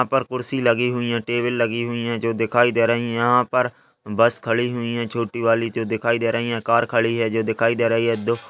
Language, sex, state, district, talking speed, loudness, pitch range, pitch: Hindi, male, Uttar Pradesh, Muzaffarnagar, 275 wpm, -21 LUFS, 115-120 Hz, 115 Hz